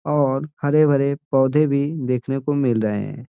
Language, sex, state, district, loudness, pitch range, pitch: Hindi, male, Bihar, Gaya, -20 LUFS, 130-145 Hz, 140 Hz